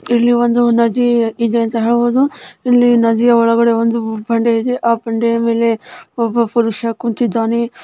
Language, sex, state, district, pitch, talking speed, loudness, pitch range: Kannada, female, Karnataka, Raichur, 235 Hz, 120 wpm, -14 LUFS, 230-240 Hz